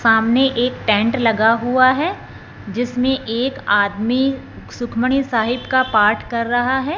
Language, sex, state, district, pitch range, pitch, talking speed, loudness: Hindi, male, Punjab, Fazilka, 225-260 Hz, 245 Hz, 140 wpm, -17 LUFS